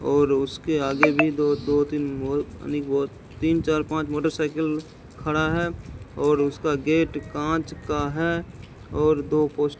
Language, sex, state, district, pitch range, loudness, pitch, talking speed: Hindi, male, Rajasthan, Bikaner, 145-155 Hz, -24 LUFS, 150 Hz, 140 wpm